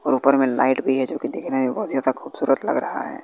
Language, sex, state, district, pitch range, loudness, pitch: Hindi, male, Bihar, West Champaran, 130-135 Hz, -21 LUFS, 130 Hz